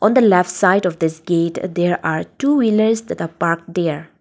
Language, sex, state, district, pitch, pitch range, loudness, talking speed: English, female, Nagaland, Dimapur, 180 Hz, 165-210 Hz, -17 LUFS, 215 wpm